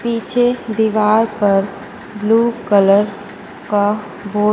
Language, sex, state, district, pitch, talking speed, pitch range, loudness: Hindi, female, Madhya Pradesh, Dhar, 210 Hz, 105 wpm, 205-230 Hz, -16 LUFS